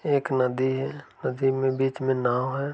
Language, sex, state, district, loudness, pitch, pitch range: Hindi, male, Uttar Pradesh, Varanasi, -26 LUFS, 130 Hz, 130-135 Hz